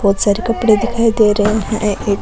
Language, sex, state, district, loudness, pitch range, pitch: Rajasthani, female, Rajasthan, Nagaur, -15 LUFS, 205-230 Hz, 215 Hz